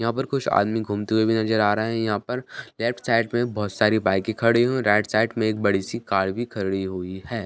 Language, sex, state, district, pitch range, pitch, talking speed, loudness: Hindi, male, Bihar, Bhagalpur, 105-115 Hz, 110 Hz, 250 wpm, -23 LUFS